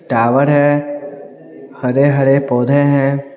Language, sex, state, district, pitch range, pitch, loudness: Hindi, male, Bihar, Patna, 135-145 Hz, 140 Hz, -13 LUFS